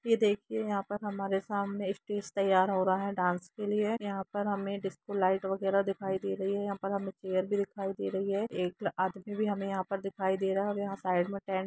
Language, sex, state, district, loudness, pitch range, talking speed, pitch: Hindi, female, Jharkhand, Jamtara, -32 LUFS, 190-205 Hz, 250 wpm, 195 Hz